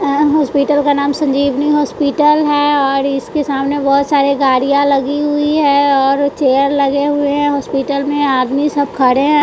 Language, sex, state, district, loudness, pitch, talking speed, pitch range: Hindi, female, Bihar, West Champaran, -13 LUFS, 285 Hz, 170 wpm, 275-290 Hz